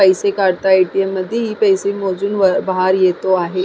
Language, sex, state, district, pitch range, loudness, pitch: Marathi, female, Maharashtra, Sindhudurg, 185-200 Hz, -15 LUFS, 190 Hz